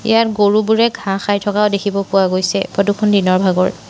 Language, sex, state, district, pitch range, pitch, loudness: Assamese, female, Assam, Sonitpur, 195-210 Hz, 200 Hz, -15 LUFS